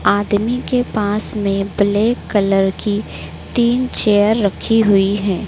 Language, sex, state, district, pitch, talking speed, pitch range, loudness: Hindi, female, Madhya Pradesh, Dhar, 205 Hz, 130 wpm, 200-225 Hz, -16 LUFS